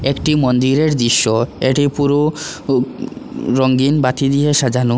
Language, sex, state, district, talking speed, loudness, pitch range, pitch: Bengali, male, Assam, Hailakandi, 120 wpm, -15 LUFS, 130-145 Hz, 135 Hz